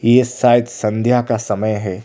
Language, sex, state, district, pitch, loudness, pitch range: Hindi, male, Odisha, Khordha, 115 Hz, -16 LUFS, 105-120 Hz